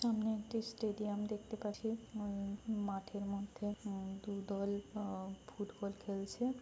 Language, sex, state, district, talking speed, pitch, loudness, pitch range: Bengali, female, West Bengal, Jhargram, 125 wpm, 205 Hz, -42 LUFS, 200-215 Hz